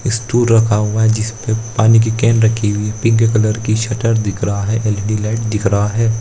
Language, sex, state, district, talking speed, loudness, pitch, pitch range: Hindi, male, Bihar, Lakhisarai, 220 wpm, -15 LUFS, 110 Hz, 105-115 Hz